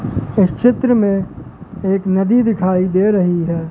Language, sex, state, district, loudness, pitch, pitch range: Hindi, male, Madhya Pradesh, Katni, -15 LUFS, 190 Hz, 180-210 Hz